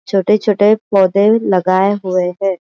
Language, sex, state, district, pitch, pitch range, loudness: Hindi, female, Maharashtra, Aurangabad, 195 Hz, 185-210 Hz, -13 LUFS